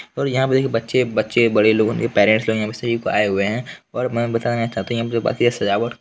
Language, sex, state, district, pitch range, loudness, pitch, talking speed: Hindi, male, Bihar, Lakhisarai, 110-120 Hz, -19 LUFS, 115 Hz, 290 wpm